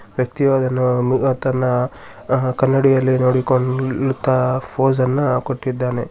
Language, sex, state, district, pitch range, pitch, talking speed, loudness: Kannada, male, Karnataka, Shimoga, 125-135 Hz, 130 Hz, 70 wpm, -18 LUFS